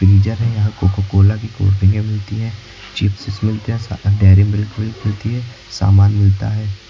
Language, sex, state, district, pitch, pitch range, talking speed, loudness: Hindi, male, Uttar Pradesh, Lucknow, 105 Hz, 100-110 Hz, 155 wpm, -16 LUFS